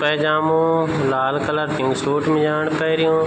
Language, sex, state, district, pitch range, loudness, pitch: Garhwali, male, Uttarakhand, Tehri Garhwal, 145-160 Hz, -19 LUFS, 155 Hz